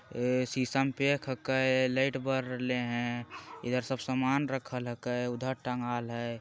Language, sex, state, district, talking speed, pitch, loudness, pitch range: Magahi, male, Bihar, Jamui, 160 wpm, 125 Hz, -32 LUFS, 120-130 Hz